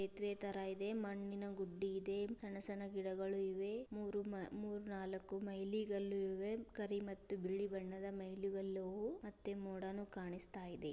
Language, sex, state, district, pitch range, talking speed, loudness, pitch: Kannada, female, Karnataka, Dharwad, 195-205 Hz, 115 wpm, -45 LUFS, 195 Hz